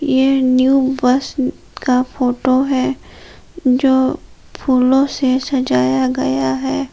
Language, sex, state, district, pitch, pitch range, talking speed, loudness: Hindi, female, Jharkhand, Palamu, 260 Hz, 250-265 Hz, 105 wpm, -16 LUFS